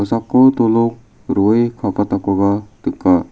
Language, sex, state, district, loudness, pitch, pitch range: Garo, male, Meghalaya, South Garo Hills, -16 LUFS, 110 Hz, 100-115 Hz